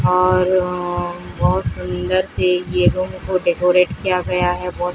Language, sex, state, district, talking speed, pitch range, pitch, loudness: Hindi, female, Odisha, Sambalpur, 160 wpm, 115-180 Hz, 180 Hz, -18 LUFS